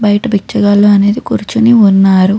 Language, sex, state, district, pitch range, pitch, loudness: Telugu, female, Andhra Pradesh, Krishna, 200-220 Hz, 205 Hz, -9 LUFS